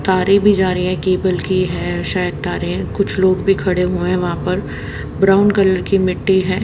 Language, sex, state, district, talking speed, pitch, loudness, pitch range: Hindi, female, Haryana, Jhajjar, 210 wpm, 185 Hz, -16 LUFS, 180-195 Hz